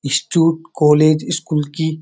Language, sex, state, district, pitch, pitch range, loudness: Hindi, male, Uttarakhand, Uttarkashi, 155 Hz, 150-160 Hz, -16 LUFS